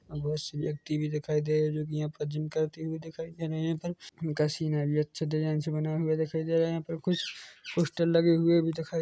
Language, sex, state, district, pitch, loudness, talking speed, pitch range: Hindi, male, Chhattisgarh, Korba, 155 Hz, -30 LUFS, 270 wpm, 150-165 Hz